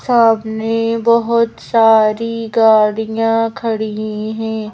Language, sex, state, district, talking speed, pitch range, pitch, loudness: Hindi, female, Madhya Pradesh, Bhopal, 75 wpm, 220-230 Hz, 225 Hz, -15 LUFS